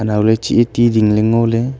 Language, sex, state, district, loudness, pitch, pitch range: Wancho, male, Arunachal Pradesh, Longding, -14 LUFS, 115 Hz, 110-120 Hz